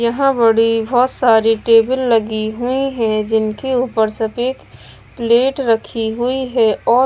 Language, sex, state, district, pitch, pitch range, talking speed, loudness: Hindi, female, Bihar, West Champaran, 230 Hz, 225-255 Hz, 135 wpm, -16 LUFS